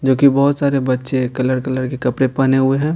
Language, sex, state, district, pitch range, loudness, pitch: Hindi, male, Bihar, Patna, 130-140 Hz, -16 LUFS, 130 Hz